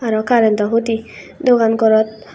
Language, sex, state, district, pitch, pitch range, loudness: Chakma, female, Tripura, West Tripura, 225 Hz, 220-235 Hz, -15 LUFS